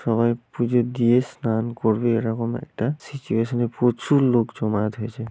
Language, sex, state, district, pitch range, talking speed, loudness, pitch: Bengali, male, West Bengal, Malda, 115-125 Hz, 135 wpm, -22 LUFS, 120 Hz